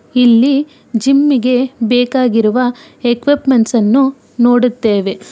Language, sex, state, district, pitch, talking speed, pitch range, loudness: Kannada, female, Karnataka, Bangalore, 245 Hz, 70 wpm, 235-270 Hz, -12 LUFS